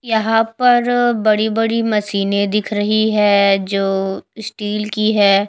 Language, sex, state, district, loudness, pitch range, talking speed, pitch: Hindi, female, Chhattisgarh, Raipur, -16 LUFS, 200-225 Hz, 130 wpm, 210 Hz